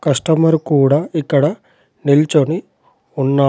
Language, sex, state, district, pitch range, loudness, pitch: Telugu, male, Telangana, Adilabad, 140-160 Hz, -15 LUFS, 145 Hz